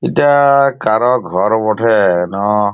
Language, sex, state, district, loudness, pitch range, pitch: Bengali, male, West Bengal, Purulia, -13 LUFS, 105-140 Hz, 115 Hz